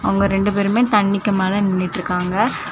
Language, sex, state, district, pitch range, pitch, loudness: Tamil, female, Tamil Nadu, Kanyakumari, 185-205 Hz, 200 Hz, -18 LUFS